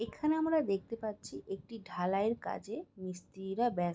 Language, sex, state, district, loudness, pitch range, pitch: Bengali, female, West Bengal, Jhargram, -36 LUFS, 190-230 Hz, 205 Hz